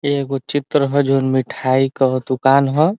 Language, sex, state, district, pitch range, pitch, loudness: Bhojpuri, male, Uttar Pradesh, Ghazipur, 130-145 Hz, 135 Hz, -17 LUFS